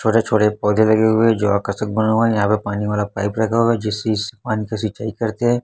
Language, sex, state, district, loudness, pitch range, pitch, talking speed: Hindi, male, Chhattisgarh, Raipur, -18 LUFS, 105-115 Hz, 110 Hz, 275 wpm